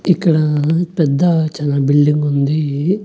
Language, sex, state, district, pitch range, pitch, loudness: Telugu, male, Andhra Pradesh, Annamaya, 145-170 Hz, 155 Hz, -15 LUFS